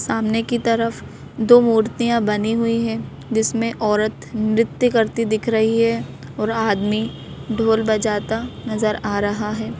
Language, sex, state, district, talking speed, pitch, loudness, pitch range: Hindi, female, Madhya Pradesh, Bhopal, 140 wpm, 225 Hz, -19 LUFS, 215-230 Hz